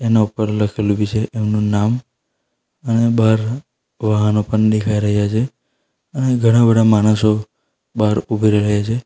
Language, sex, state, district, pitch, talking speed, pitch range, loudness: Gujarati, male, Gujarat, Valsad, 110 Hz, 145 wpm, 105-115 Hz, -16 LUFS